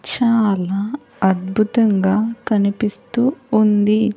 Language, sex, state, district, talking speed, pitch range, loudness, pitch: Telugu, female, Andhra Pradesh, Sri Satya Sai, 60 wpm, 200-230 Hz, -18 LUFS, 215 Hz